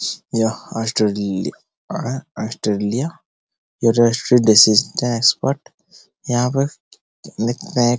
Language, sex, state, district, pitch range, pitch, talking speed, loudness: Hindi, male, Bihar, Araria, 110-125 Hz, 115 Hz, 60 wpm, -18 LUFS